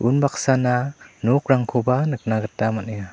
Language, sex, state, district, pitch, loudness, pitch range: Garo, male, Meghalaya, South Garo Hills, 125 Hz, -21 LUFS, 110-135 Hz